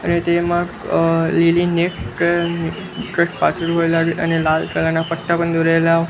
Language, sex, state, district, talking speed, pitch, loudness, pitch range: Gujarati, male, Gujarat, Gandhinagar, 110 wpm, 170 Hz, -18 LUFS, 165-170 Hz